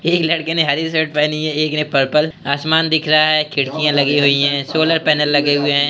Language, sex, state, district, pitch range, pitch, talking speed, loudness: Hindi, male, Uttar Pradesh, Hamirpur, 145-160 Hz, 150 Hz, 275 wpm, -15 LUFS